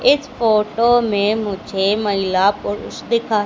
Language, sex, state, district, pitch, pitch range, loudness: Hindi, female, Madhya Pradesh, Katni, 210 Hz, 200-230 Hz, -18 LUFS